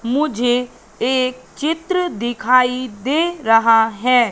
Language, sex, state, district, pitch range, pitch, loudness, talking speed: Hindi, female, Madhya Pradesh, Katni, 235-290 Hz, 250 Hz, -17 LUFS, 95 wpm